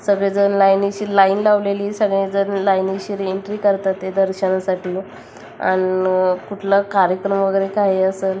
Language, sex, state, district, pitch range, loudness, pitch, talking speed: Marathi, female, Maharashtra, Chandrapur, 190-200 Hz, -18 LUFS, 195 Hz, 130 wpm